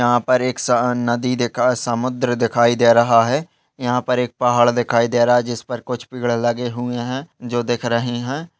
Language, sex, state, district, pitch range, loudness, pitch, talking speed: Hindi, male, Goa, North and South Goa, 120-125 Hz, -18 LUFS, 120 Hz, 210 wpm